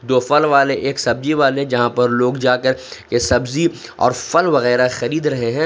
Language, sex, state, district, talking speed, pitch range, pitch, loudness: Hindi, male, Jharkhand, Ranchi, 190 wpm, 120-140 Hz, 125 Hz, -16 LUFS